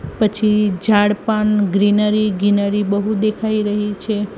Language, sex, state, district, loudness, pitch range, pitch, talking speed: Gujarati, female, Gujarat, Gandhinagar, -17 LUFS, 205-215 Hz, 210 Hz, 125 wpm